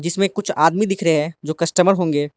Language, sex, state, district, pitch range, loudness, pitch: Hindi, male, Arunachal Pradesh, Lower Dibang Valley, 155-195 Hz, -18 LUFS, 170 Hz